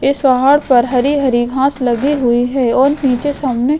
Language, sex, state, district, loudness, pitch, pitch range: Hindi, female, Goa, North and South Goa, -13 LUFS, 265 Hz, 250-280 Hz